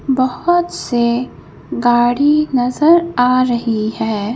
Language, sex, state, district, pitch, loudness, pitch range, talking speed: Hindi, female, Madhya Pradesh, Bhopal, 250 Hz, -15 LUFS, 240-290 Hz, 95 wpm